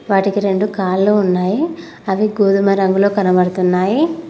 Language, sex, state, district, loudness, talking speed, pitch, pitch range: Telugu, female, Telangana, Mahabubabad, -15 LUFS, 110 wpm, 195 Hz, 190-210 Hz